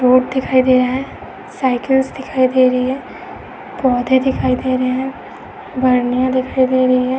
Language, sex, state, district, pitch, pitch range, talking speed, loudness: Hindi, female, Uttar Pradesh, Etah, 255 Hz, 255-260 Hz, 160 wpm, -16 LUFS